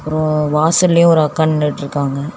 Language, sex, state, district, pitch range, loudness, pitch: Tamil, female, Tamil Nadu, Chennai, 150-160 Hz, -14 LUFS, 155 Hz